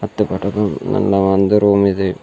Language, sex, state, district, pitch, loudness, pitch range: Kannada, male, Karnataka, Bidar, 100 Hz, -15 LUFS, 95-105 Hz